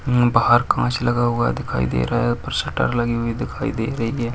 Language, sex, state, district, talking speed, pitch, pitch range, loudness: Hindi, male, Bihar, Jahanabad, 235 wpm, 120 Hz, 115-120 Hz, -20 LUFS